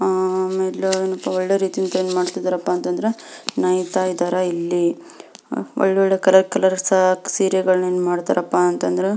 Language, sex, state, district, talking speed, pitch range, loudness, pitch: Kannada, female, Karnataka, Belgaum, 130 wpm, 180-190 Hz, -19 LUFS, 185 Hz